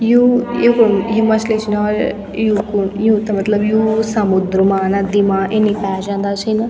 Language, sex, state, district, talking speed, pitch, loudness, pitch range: Garhwali, female, Uttarakhand, Tehri Garhwal, 170 wpm, 210 Hz, -15 LUFS, 200-220 Hz